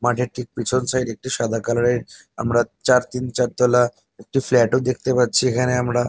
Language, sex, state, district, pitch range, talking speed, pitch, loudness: Bengali, male, West Bengal, North 24 Parganas, 120-125 Hz, 205 wpm, 125 Hz, -20 LUFS